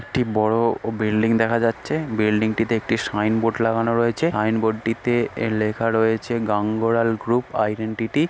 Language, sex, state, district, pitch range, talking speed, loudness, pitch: Bengali, female, West Bengal, North 24 Parganas, 110-115 Hz, 145 wpm, -21 LUFS, 115 Hz